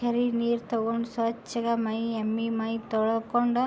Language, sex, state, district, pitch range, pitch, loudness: Kannada, female, Karnataka, Belgaum, 225-235 Hz, 230 Hz, -28 LUFS